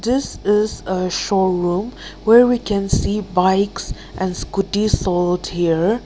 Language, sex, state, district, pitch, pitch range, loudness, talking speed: English, female, Nagaland, Kohima, 195 Hz, 180-210 Hz, -18 LUFS, 130 wpm